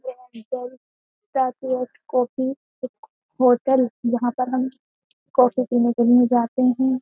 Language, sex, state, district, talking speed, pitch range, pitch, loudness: Hindi, female, Uttar Pradesh, Jyotiba Phule Nagar, 110 wpm, 245-260 Hz, 255 Hz, -21 LUFS